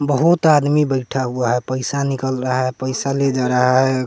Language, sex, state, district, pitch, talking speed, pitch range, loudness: Hindi, male, Bihar, West Champaran, 130 Hz, 205 wpm, 130-140 Hz, -18 LUFS